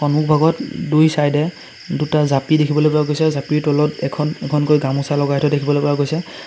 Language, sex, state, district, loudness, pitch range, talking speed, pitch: Assamese, male, Assam, Sonitpur, -17 LUFS, 145-155 Hz, 175 wpm, 150 Hz